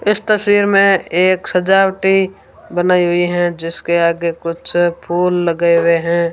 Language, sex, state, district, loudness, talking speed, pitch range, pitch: Hindi, female, Rajasthan, Bikaner, -14 LUFS, 140 wpm, 170-190 Hz, 175 Hz